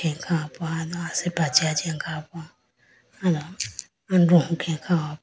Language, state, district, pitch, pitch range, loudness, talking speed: Idu Mishmi, Arunachal Pradesh, Lower Dibang Valley, 165 Hz, 155-175 Hz, -24 LUFS, 150 wpm